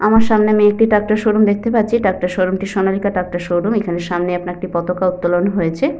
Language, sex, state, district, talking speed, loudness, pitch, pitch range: Bengali, female, West Bengal, Jhargram, 210 wpm, -16 LUFS, 190 Hz, 180-215 Hz